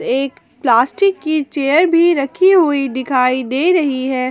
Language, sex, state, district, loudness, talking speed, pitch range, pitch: Hindi, female, Jharkhand, Palamu, -15 LUFS, 155 wpm, 260-340 Hz, 285 Hz